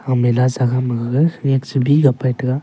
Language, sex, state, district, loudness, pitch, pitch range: Wancho, male, Arunachal Pradesh, Longding, -17 LUFS, 130 Hz, 125-135 Hz